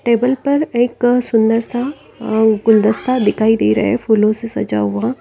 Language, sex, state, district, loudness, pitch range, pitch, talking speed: Hindi, female, Uttar Pradesh, Lalitpur, -15 LUFS, 215-245 Hz, 225 Hz, 175 wpm